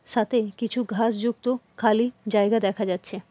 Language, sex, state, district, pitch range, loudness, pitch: Bengali, female, West Bengal, Purulia, 205-235 Hz, -24 LUFS, 225 Hz